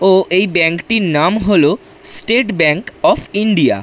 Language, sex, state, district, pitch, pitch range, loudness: Bengali, male, West Bengal, Jhargram, 190 Hz, 170-210 Hz, -14 LUFS